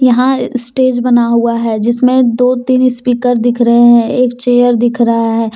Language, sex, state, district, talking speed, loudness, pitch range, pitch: Hindi, female, Jharkhand, Deoghar, 185 wpm, -11 LUFS, 235-250 Hz, 245 Hz